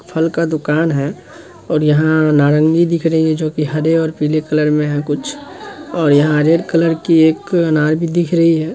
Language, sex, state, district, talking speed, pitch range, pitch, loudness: Hindi, male, Bihar, Sitamarhi, 200 wpm, 150-165 Hz, 160 Hz, -14 LUFS